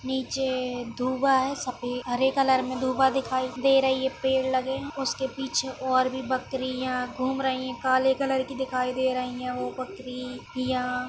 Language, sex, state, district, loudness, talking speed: Kumaoni, female, Uttarakhand, Tehri Garhwal, -27 LUFS, 180 wpm